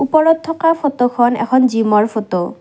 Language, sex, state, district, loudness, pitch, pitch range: Assamese, female, Assam, Kamrup Metropolitan, -15 LUFS, 245 Hz, 225-315 Hz